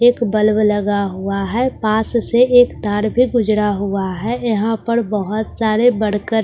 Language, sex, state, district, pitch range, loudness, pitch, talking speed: Hindi, female, Bihar, Katihar, 205-235 Hz, -16 LUFS, 215 Hz, 185 wpm